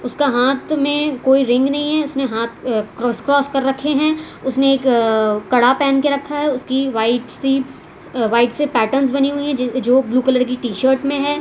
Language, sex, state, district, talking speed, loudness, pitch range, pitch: Hindi, female, Gujarat, Valsad, 210 wpm, -17 LUFS, 245-285 Hz, 265 Hz